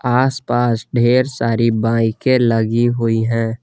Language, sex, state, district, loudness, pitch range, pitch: Hindi, male, Jharkhand, Garhwa, -16 LUFS, 115-125 Hz, 120 Hz